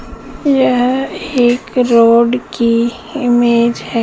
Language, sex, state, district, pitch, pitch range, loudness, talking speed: Hindi, female, Madhya Pradesh, Katni, 240 Hz, 235-250 Hz, -13 LUFS, 90 wpm